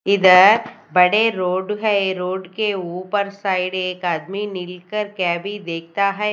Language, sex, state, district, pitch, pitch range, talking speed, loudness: Hindi, female, Odisha, Nuapada, 190 Hz, 180-205 Hz, 140 wpm, -19 LUFS